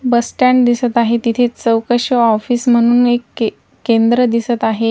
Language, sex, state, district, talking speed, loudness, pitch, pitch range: Marathi, female, Maharashtra, Washim, 145 wpm, -14 LUFS, 240 Hz, 230-245 Hz